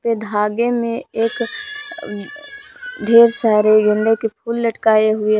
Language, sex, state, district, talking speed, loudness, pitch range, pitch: Hindi, female, Jharkhand, Palamu, 110 wpm, -16 LUFS, 215-240 Hz, 230 Hz